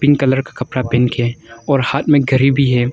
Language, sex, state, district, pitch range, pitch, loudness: Hindi, male, Arunachal Pradesh, Longding, 125-140 Hz, 130 Hz, -15 LUFS